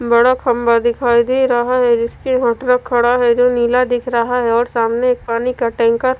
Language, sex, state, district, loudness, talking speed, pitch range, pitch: Hindi, female, Punjab, Fazilka, -15 LUFS, 225 wpm, 235-250 Hz, 240 Hz